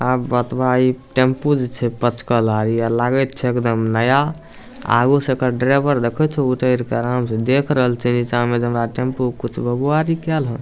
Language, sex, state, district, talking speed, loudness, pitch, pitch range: Maithili, male, Bihar, Samastipur, 225 wpm, -18 LUFS, 125 Hz, 120-135 Hz